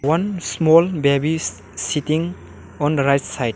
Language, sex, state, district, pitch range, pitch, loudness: English, male, Arunachal Pradesh, Lower Dibang Valley, 140-160 Hz, 150 Hz, -19 LUFS